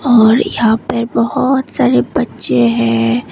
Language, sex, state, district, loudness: Hindi, female, Tripura, West Tripura, -13 LUFS